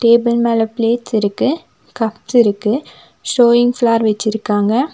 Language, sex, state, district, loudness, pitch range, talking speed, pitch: Tamil, female, Tamil Nadu, Nilgiris, -15 LUFS, 220-240 Hz, 110 wpm, 230 Hz